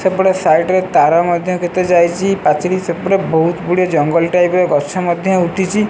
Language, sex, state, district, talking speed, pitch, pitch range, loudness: Odia, male, Odisha, Sambalpur, 175 wpm, 180 Hz, 170-185 Hz, -14 LUFS